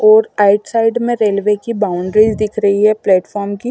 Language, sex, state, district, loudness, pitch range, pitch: Hindi, female, Maharashtra, Mumbai Suburban, -14 LUFS, 205-220 Hz, 210 Hz